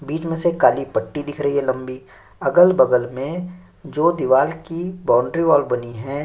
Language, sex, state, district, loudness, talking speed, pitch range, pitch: Hindi, male, Chhattisgarh, Sukma, -19 LUFS, 175 wpm, 130-170 Hz, 145 Hz